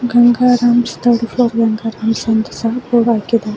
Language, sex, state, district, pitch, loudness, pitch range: Kannada, female, Karnataka, Bangalore, 235 Hz, -14 LUFS, 225-240 Hz